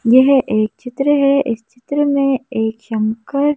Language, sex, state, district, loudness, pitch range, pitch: Hindi, female, Madhya Pradesh, Bhopal, -16 LUFS, 225-275 Hz, 255 Hz